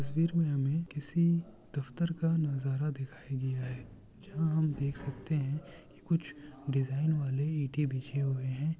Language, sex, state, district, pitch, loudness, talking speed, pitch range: Urdu, male, Bihar, Kishanganj, 145 Hz, -33 LUFS, 165 wpm, 135-160 Hz